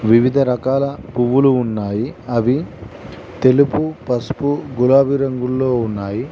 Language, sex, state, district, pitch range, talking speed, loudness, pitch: Telugu, male, Telangana, Mahabubabad, 120-140 Hz, 95 wpm, -17 LUFS, 125 Hz